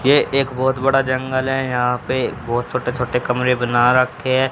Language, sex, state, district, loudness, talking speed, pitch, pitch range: Hindi, female, Haryana, Jhajjar, -18 LUFS, 200 wpm, 130 Hz, 125-130 Hz